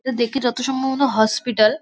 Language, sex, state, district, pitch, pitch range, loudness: Bengali, female, West Bengal, Dakshin Dinajpur, 250 Hz, 230-265 Hz, -19 LUFS